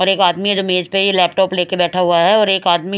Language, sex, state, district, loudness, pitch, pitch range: Hindi, female, Haryana, Rohtak, -14 LUFS, 185 Hz, 180-195 Hz